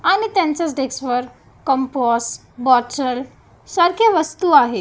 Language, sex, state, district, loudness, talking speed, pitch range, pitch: Marathi, female, Maharashtra, Gondia, -18 LUFS, 110 wpm, 250-345 Hz, 270 Hz